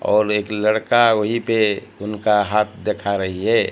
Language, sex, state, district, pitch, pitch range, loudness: Hindi, male, Odisha, Malkangiri, 105 Hz, 105-110 Hz, -19 LUFS